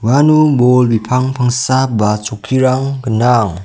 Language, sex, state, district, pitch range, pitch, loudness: Garo, male, Meghalaya, South Garo Hills, 115-130 Hz, 125 Hz, -13 LUFS